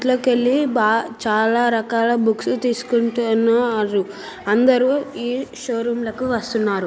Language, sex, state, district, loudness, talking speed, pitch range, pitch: Telugu, female, Telangana, Nalgonda, -19 LUFS, 115 wpm, 220-250 Hz, 235 Hz